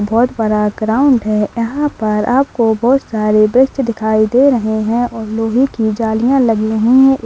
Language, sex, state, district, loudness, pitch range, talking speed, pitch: Hindi, female, Rajasthan, Nagaur, -14 LUFS, 220-255 Hz, 175 wpm, 225 Hz